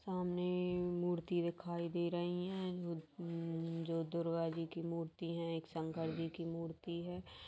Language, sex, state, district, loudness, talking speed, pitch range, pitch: Hindi, female, Chhattisgarh, Kabirdham, -41 LUFS, 145 wpm, 165-175 Hz, 170 Hz